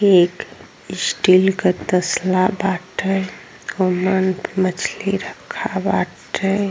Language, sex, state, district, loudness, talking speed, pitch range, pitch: Bhojpuri, female, Uttar Pradesh, Gorakhpur, -19 LUFS, 80 wpm, 185-195 Hz, 185 Hz